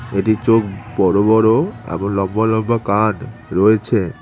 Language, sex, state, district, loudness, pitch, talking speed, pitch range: Bengali, male, West Bengal, Cooch Behar, -16 LUFS, 110 Hz, 130 wpm, 100-115 Hz